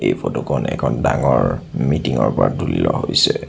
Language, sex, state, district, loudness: Assamese, male, Assam, Sonitpur, -18 LUFS